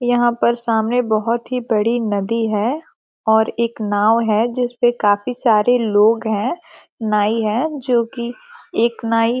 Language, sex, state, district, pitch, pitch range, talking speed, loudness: Hindi, female, Bihar, Gopalganj, 230 Hz, 220-245 Hz, 155 wpm, -18 LUFS